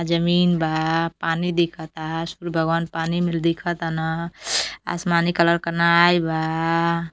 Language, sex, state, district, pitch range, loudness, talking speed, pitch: Bhojpuri, female, Uttar Pradesh, Deoria, 165-170 Hz, -21 LUFS, 125 wpm, 170 Hz